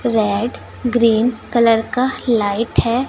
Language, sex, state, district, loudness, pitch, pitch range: Hindi, female, Chhattisgarh, Raipur, -17 LUFS, 230 Hz, 225-245 Hz